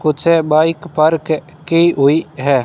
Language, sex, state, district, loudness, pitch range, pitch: Hindi, male, Rajasthan, Bikaner, -14 LUFS, 150-165 Hz, 155 Hz